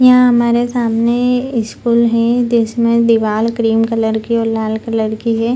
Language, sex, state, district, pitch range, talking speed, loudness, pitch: Hindi, female, Bihar, Purnia, 225-235 Hz, 160 wpm, -14 LUFS, 230 Hz